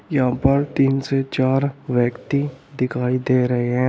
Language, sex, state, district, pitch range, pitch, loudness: Hindi, male, Uttar Pradesh, Shamli, 125-135 Hz, 130 Hz, -20 LUFS